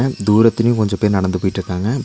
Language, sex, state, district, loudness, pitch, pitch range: Tamil, male, Tamil Nadu, Nilgiris, -16 LUFS, 105 Hz, 95-115 Hz